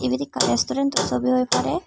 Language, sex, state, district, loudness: Chakma, female, Tripura, Dhalai, -21 LUFS